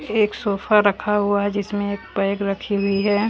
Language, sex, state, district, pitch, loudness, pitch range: Hindi, female, Chandigarh, Chandigarh, 205 Hz, -21 LUFS, 200-210 Hz